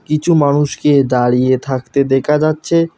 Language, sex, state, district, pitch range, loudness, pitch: Bengali, male, West Bengal, Alipurduar, 130-155 Hz, -14 LUFS, 145 Hz